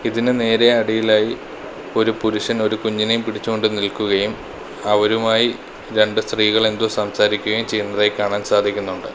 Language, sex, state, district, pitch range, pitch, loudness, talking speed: Malayalam, male, Kerala, Kollam, 105-110 Hz, 110 Hz, -18 LUFS, 120 wpm